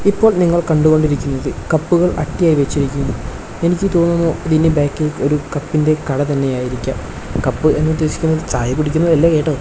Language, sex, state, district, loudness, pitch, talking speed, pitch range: Malayalam, male, Kerala, Kasaragod, -16 LUFS, 155 Hz, 135 wpm, 140-165 Hz